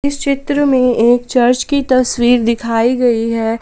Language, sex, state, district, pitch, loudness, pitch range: Hindi, female, Jharkhand, Palamu, 245 Hz, -13 LUFS, 235-270 Hz